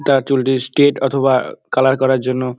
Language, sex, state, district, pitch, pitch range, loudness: Bengali, male, West Bengal, Dakshin Dinajpur, 130 Hz, 130-135 Hz, -16 LUFS